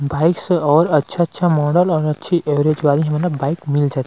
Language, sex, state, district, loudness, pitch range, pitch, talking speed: Chhattisgarhi, male, Chhattisgarh, Rajnandgaon, -17 LUFS, 145-170 Hz, 150 Hz, 190 wpm